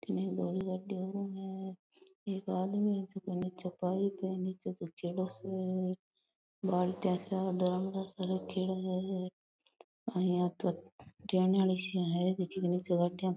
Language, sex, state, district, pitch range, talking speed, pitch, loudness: Rajasthani, female, Rajasthan, Nagaur, 180-190 Hz, 150 wpm, 185 Hz, -35 LUFS